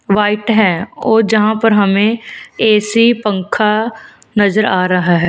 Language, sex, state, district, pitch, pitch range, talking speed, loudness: Hindi, female, Punjab, Fazilka, 210 Hz, 200-225 Hz, 135 wpm, -13 LUFS